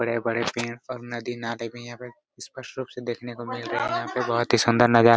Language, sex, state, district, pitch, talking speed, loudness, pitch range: Hindi, male, Chhattisgarh, Raigarh, 120 Hz, 230 wpm, -26 LUFS, 115-120 Hz